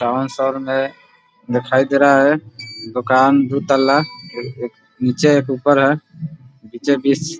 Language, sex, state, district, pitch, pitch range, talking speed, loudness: Hindi, male, Bihar, Muzaffarpur, 135 Hz, 125-145 Hz, 140 wpm, -16 LUFS